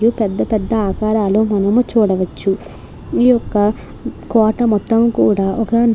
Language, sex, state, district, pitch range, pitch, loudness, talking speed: Telugu, female, Andhra Pradesh, Krishna, 205-230 Hz, 220 Hz, -15 LUFS, 120 wpm